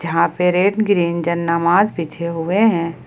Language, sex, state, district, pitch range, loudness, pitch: Hindi, female, Jharkhand, Ranchi, 170-195 Hz, -17 LUFS, 170 Hz